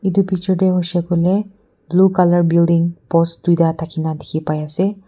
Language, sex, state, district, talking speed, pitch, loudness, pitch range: Nagamese, female, Nagaland, Kohima, 165 wpm, 175 Hz, -17 LUFS, 165-190 Hz